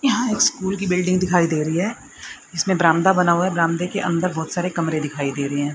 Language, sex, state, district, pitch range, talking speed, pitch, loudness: Hindi, female, Haryana, Rohtak, 160-185 Hz, 230 wpm, 175 Hz, -20 LUFS